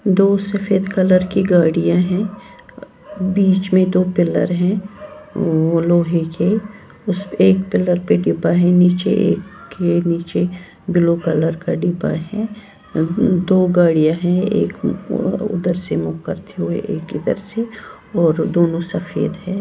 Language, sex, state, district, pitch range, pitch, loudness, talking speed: Hindi, female, Haryana, Jhajjar, 170-195 Hz, 180 Hz, -17 LUFS, 135 wpm